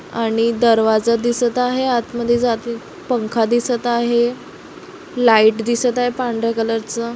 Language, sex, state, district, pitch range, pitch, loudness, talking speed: Marathi, female, Maharashtra, Solapur, 230-245 Hz, 235 Hz, -17 LUFS, 135 wpm